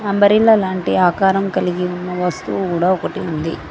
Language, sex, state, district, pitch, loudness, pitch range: Telugu, female, Telangana, Mahabubabad, 185 Hz, -17 LUFS, 180-195 Hz